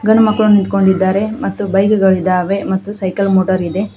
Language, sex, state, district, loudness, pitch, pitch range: Kannada, female, Karnataka, Koppal, -14 LUFS, 195 Hz, 190-205 Hz